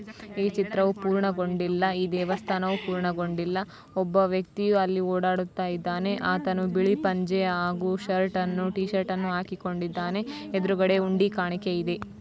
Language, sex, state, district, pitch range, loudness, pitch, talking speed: Kannada, female, Karnataka, Belgaum, 180-195 Hz, -27 LUFS, 185 Hz, 105 wpm